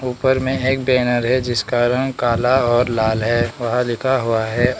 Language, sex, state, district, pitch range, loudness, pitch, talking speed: Hindi, male, Arunachal Pradesh, Lower Dibang Valley, 120-130 Hz, -18 LUFS, 120 Hz, 185 wpm